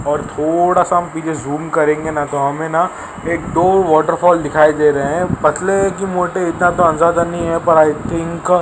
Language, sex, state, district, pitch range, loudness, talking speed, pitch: Hindi, male, Maharashtra, Mumbai Suburban, 155-175 Hz, -15 LUFS, 210 wpm, 165 Hz